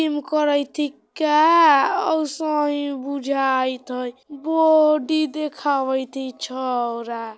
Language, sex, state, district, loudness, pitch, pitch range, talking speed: Bajjika, female, Bihar, Vaishali, -20 LUFS, 285 Hz, 260-305 Hz, 95 wpm